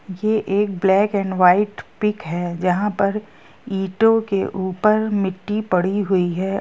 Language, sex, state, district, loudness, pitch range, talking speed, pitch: Hindi, female, Jharkhand, Sahebganj, -20 LUFS, 185-210 Hz, 145 wpm, 195 Hz